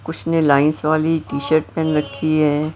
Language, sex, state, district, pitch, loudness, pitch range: Hindi, female, Maharashtra, Mumbai Suburban, 155 Hz, -18 LUFS, 150-160 Hz